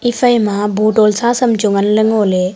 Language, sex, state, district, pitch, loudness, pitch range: Wancho, female, Arunachal Pradesh, Longding, 215 Hz, -13 LUFS, 205-235 Hz